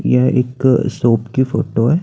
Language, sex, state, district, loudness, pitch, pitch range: Hindi, male, Chandigarh, Chandigarh, -16 LUFS, 125 Hz, 110-130 Hz